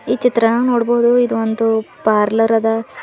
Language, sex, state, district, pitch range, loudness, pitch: Kannada, female, Karnataka, Bidar, 225-240 Hz, -15 LUFS, 225 Hz